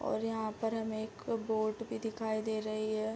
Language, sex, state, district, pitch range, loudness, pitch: Hindi, female, Bihar, Sitamarhi, 215-225 Hz, -36 LUFS, 220 Hz